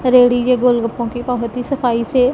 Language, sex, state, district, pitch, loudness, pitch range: Hindi, female, Punjab, Pathankot, 245 Hz, -16 LUFS, 235-250 Hz